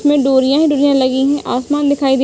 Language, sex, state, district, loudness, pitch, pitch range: Hindi, female, Uttar Pradesh, Ghazipur, -14 LUFS, 280 Hz, 265-290 Hz